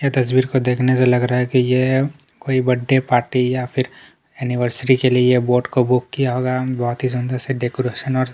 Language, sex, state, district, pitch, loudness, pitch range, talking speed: Hindi, male, Chhattisgarh, Kabirdham, 125 Hz, -18 LUFS, 125-130 Hz, 225 wpm